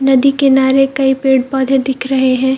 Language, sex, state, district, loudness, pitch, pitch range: Hindi, female, Bihar, Purnia, -12 LUFS, 265 Hz, 265-270 Hz